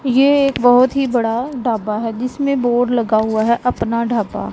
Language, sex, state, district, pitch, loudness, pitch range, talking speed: Hindi, female, Punjab, Pathankot, 245 Hz, -16 LUFS, 230-260 Hz, 185 wpm